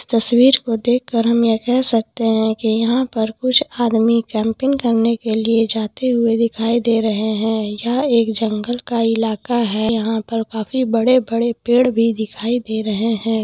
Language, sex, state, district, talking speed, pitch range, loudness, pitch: Hindi, female, Bihar, Madhepura, 175 wpm, 220-240 Hz, -17 LUFS, 230 Hz